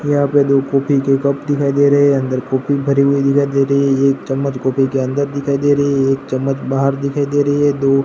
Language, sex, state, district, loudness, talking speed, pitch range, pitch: Hindi, male, Gujarat, Gandhinagar, -15 LUFS, 260 wpm, 135-140 Hz, 140 Hz